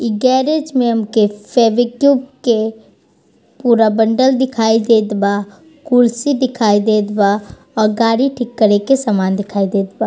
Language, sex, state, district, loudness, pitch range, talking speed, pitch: Bhojpuri, female, Bihar, East Champaran, -14 LUFS, 210-255 Hz, 145 wpm, 225 Hz